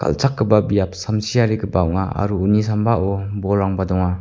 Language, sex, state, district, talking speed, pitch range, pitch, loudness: Garo, male, Meghalaya, West Garo Hills, 130 wpm, 95-105 Hz, 100 Hz, -19 LUFS